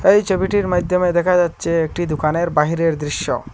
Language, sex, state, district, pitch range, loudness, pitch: Bengali, male, Assam, Hailakandi, 160-180 Hz, -18 LUFS, 175 Hz